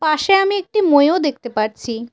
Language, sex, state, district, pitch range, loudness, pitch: Bengali, female, West Bengal, Cooch Behar, 240-385 Hz, -16 LUFS, 300 Hz